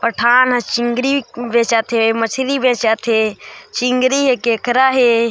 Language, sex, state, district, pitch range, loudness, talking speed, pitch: Chhattisgarhi, female, Chhattisgarh, Korba, 230-255 Hz, -15 LUFS, 125 wpm, 240 Hz